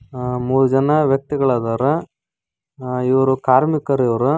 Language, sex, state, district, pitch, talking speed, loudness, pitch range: Kannada, male, Karnataka, Koppal, 130 Hz, 110 wpm, -17 LUFS, 125-140 Hz